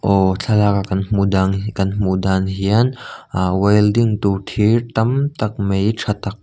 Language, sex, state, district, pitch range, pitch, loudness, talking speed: Mizo, male, Mizoram, Aizawl, 95-110 Hz, 100 Hz, -17 LUFS, 185 wpm